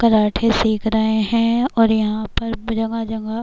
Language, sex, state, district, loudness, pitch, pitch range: Hindi, female, Uttar Pradesh, Etah, -19 LUFS, 225 Hz, 220-230 Hz